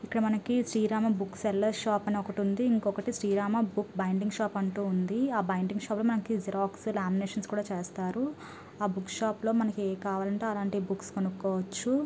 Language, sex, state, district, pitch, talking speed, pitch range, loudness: Telugu, female, Andhra Pradesh, Srikakulam, 205 Hz, 165 wpm, 195-220 Hz, -31 LUFS